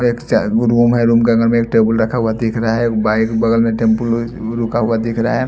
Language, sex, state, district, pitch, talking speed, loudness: Hindi, male, Haryana, Jhajjar, 115 Hz, 240 wpm, -15 LUFS